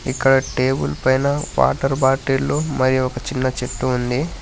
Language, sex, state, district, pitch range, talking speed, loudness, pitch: Telugu, male, Telangana, Hyderabad, 125-135 Hz, 135 wpm, -19 LUFS, 130 Hz